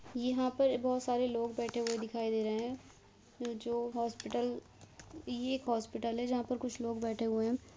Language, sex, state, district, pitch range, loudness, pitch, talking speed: Hindi, female, Uttar Pradesh, Hamirpur, 230-250 Hz, -36 LUFS, 240 Hz, 195 wpm